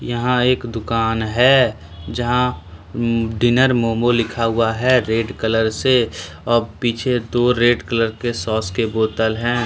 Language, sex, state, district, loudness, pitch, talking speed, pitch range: Hindi, male, Jharkhand, Deoghar, -18 LUFS, 115 Hz, 145 wpm, 110-120 Hz